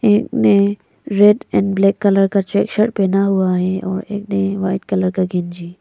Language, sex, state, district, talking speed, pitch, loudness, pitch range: Hindi, female, Arunachal Pradesh, Lower Dibang Valley, 205 wpm, 195 Hz, -16 LUFS, 190-205 Hz